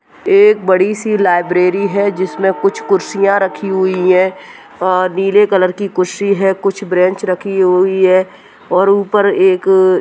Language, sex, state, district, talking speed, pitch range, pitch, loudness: Hindi, female, Uttarakhand, Tehri Garhwal, 160 wpm, 185-205 Hz, 195 Hz, -13 LUFS